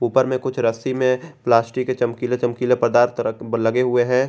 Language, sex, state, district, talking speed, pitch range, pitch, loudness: Hindi, male, Jharkhand, Garhwa, 180 wpm, 120-130 Hz, 125 Hz, -20 LUFS